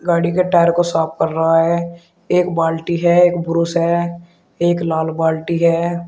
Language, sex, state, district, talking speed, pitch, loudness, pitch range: Hindi, male, Uttar Pradesh, Shamli, 180 wpm, 170 Hz, -16 LUFS, 165-175 Hz